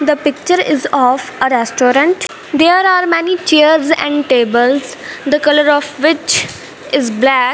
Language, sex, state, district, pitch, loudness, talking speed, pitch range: English, female, Punjab, Fazilka, 290 Hz, -12 LUFS, 145 wpm, 260-315 Hz